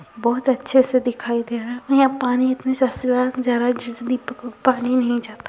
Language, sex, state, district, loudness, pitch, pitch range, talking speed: Hindi, female, Uttar Pradesh, Gorakhpur, -20 LUFS, 250 Hz, 240-260 Hz, 140 wpm